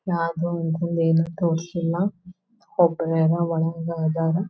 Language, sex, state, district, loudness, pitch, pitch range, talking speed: Kannada, female, Karnataka, Belgaum, -23 LUFS, 170 Hz, 165-175 Hz, 80 wpm